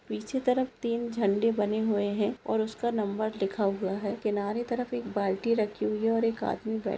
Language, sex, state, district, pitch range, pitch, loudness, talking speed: Hindi, female, Maharashtra, Sindhudurg, 205-230 Hz, 220 Hz, -29 LUFS, 205 wpm